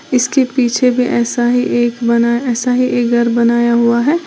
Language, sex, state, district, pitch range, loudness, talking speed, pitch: Hindi, female, Uttar Pradesh, Lalitpur, 235-250 Hz, -13 LUFS, 195 wpm, 240 Hz